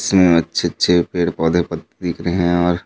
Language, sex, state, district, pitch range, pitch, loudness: Chhattisgarhi, male, Chhattisgarh, Raigarh, 85-90 Hz, 85 Hz, -17 LUFS